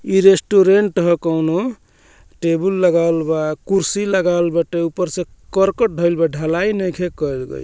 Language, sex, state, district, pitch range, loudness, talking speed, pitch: Bhojpuri, male, Bihar, Muzaffarpur, 165-195 Hz, -17 LUFS, 150 wpm, 175 Hz